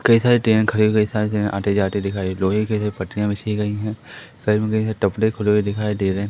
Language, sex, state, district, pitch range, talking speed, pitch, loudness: Hindi, male, Madhya Pradesh, Katni, 100-110 Hz, 265 wpm, 105 Hz, -20 LUFS